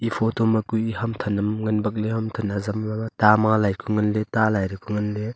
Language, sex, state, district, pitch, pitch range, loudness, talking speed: Wancho, male, Arunachal Pradesh, Longding, 110 Hz, 105-110 Hz, -23 LUFS, 280 wpm